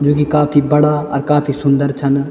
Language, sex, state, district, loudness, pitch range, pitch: Garhwali, male, Uttarakhand, Tehri Garhwal, -14 LUFS, 140-150 Hz, 145 Hz